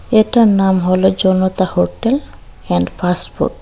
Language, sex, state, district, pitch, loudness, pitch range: Bengali, female, Tripura, Dhalai, 185 Hz, -14 LUFS, 180-215 Hz